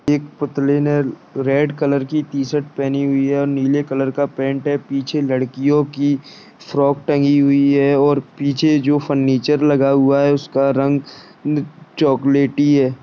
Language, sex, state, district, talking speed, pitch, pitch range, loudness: Hindi, male, Bihar, Jahanabad, 155 wpm, 140 Hz, 135-145 Hz, -17 LUFS